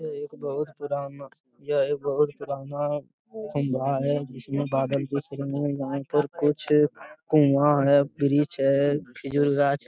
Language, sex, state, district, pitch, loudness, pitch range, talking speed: Hindi, male, Bihar, Jamui, 145 Hz, -25 LUFS, 140-145 Hz, 160 wpm